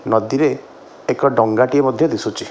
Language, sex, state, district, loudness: Odia, male, Odisha, Khordha, -17 LUFS